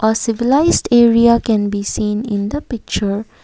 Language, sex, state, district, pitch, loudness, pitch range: English, female, Assam, Kamrup Metropolitan, 225 Hz, -15 LUFS, 210-235 Hz